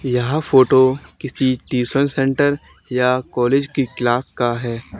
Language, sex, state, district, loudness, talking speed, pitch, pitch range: Hindi, male, Haryana, Charkhi Dadri, -18 LUFS, 130 wpm, 130 Hz, 125-135 Hz